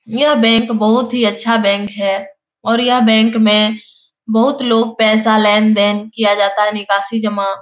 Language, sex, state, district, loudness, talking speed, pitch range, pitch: Hindi, female, Bihar, Jahanabad, -13 LUFS, 165 wpm, 205-230 Hz, 220 Hz